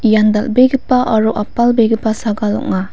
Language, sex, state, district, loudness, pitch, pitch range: Garo, female, Meghalaya, West Garo Hills, -14 LUFS, 220 Hz, 215-240 Hz